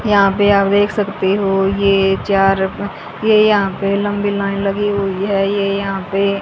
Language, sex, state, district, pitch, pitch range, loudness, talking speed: Hindi, female, Haryana, Charkhi Dadri, 200 Hz, 195-205 Hz, -15 LUFS, 175 wpm